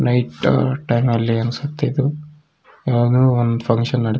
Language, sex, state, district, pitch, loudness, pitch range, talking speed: Kannada, male, Karnataka, Raichur, 125 Hz, -18 LUFS, 120-140 Hz, 145 wpm